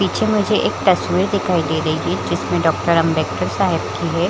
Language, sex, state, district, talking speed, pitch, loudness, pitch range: Hindi, female, Chhattisgarh, Bilaspur, 210 wpm, 170 Hz, -18 LUFS, 160-200 Hz